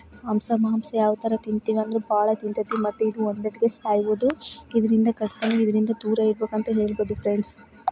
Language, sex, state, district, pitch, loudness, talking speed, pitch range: Kannada, female, Karnataka, Bijapur, 220 Hz, -24 LUFS, 165 wpm, 215-225 Hz